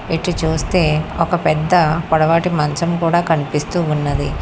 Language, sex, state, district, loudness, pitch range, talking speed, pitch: Telugu, female, Telangana, Hyderabad, -17 LUFS, 155-170 Hz, 120 wpm, 165 Hz